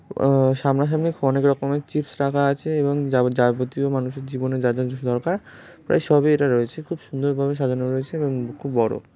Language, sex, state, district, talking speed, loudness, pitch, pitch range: Bengali, male, West Bengal, North 24 Parganas, 205 wpm, -22 LUFS, 140 Hz, 130-145 Hz